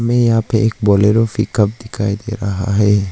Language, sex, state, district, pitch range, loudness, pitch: Hindi, male, Arunachal Pradesh, Lower Dibang Valley, 100-115 Hz, -15 LUFS, 105 Hz